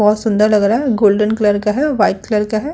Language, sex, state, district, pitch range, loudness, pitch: Hindi, female, Uttar Pradesh, Hamirpur, 210-220 Hz, -14 LUFS, 215 Hz